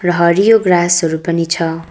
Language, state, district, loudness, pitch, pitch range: Nepali, West Bengal, Darjeeling, -13 LUFS, 170 Hz, 165-175 Hz